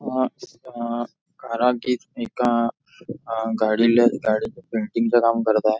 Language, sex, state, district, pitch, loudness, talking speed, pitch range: Marathi, male, Maharashtra, Nagpur, 115 Hz, -22 LUFS, 135 wpm, 110-120 Hz